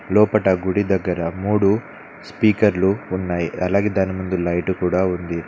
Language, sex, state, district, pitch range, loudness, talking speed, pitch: Telugu, male, Telangana, Mahabubabad, 90-100 Hz, -20 LUFS, 130 wpm, 95 Hz